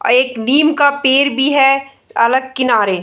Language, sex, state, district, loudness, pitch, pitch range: Hindi, female, Bihar, Samastipur, -13 LUFS, 265 Hz, 245-280 Hz